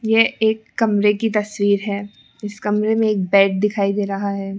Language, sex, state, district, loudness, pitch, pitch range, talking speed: Hindi, female, Rajasthan, Jaipur, -19 LUFS, 210 Hz, 200-220 Hz, 195 wpm